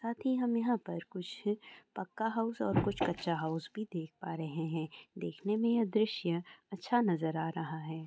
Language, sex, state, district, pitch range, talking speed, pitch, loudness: Maithili, female, Bihar, Sitamarhi, 160-225 Hz, 200 wpm, 185 Hz, -35 LUFS